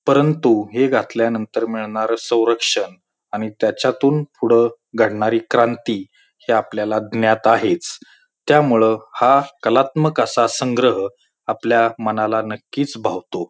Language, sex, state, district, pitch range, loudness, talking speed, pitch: Marathi, male, Maharashtra, Pune, 110-130 Hz, -18 LUFS, 100 wpm, 115 Hz